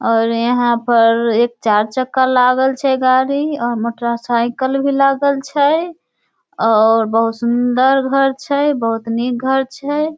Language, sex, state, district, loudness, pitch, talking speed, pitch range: Maithili, female, Bihar, Samastipur, -15 LUFS, 250 Hz, 140 wpm, 235-275 Hz